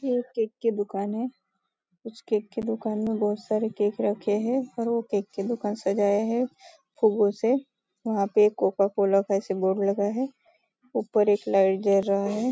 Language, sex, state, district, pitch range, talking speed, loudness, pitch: Hindi, female, Maharashtra, Nagpur, 200-235 Hz, 190 wpm, -26 LUFS, 215 Hz